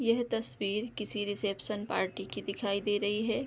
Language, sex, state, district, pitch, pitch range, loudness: Hindi, female, Bihar, Darbhanga, 210 Hz, 205-225 Hz, -33 LUFS